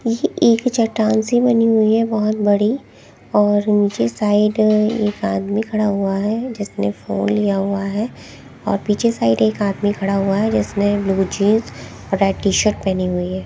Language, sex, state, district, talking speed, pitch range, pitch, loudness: Hindi, female, Haryana, Jhajjar, 180 wpm, 195-220 Hz, 205 Hz, -18 LUFS